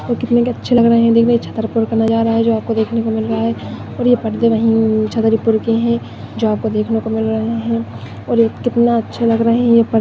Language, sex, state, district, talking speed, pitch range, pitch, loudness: Hindi, female, Maharashtra, Chandrapur, 185 wpm, 225-235 Hz, 225 Hz, -15 LUFS